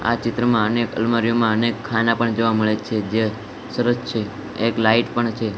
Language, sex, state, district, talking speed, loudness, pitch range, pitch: Gujarati, male, Gujarat, Gandhinagar, 185 wpm, -20 LUFS, 110-115 Hz, 115 Hz